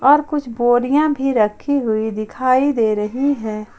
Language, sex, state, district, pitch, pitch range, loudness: Hindi, female, Jharkhand, Ranchi, 250 Hz, 215-285 Hz, -18 LUFS